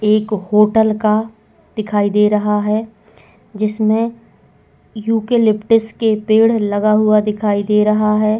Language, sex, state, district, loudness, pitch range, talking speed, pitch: Hindi, female, Goa, North and South Goa, -15 LUFS, 210-220 Hz, 130 wpm, 215 Hz